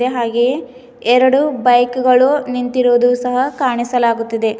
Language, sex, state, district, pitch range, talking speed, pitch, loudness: Kannada, female, Karnataka, Bidar, 240-255 Hz, 90 wpm, 250 Hz, -14 LUFS